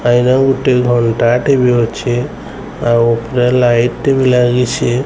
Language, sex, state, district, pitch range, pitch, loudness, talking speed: Odia, male, Odisha, Sambalpur, 120-125 Hz, 125 Hz, -12 LUFS, 140 wpm